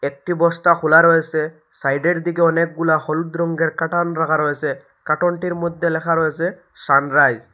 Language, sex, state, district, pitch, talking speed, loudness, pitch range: Bengali, male, Assam, Hailakandi, 165 Hz, 145 wpm, -18 LUFS, 155-170 Hz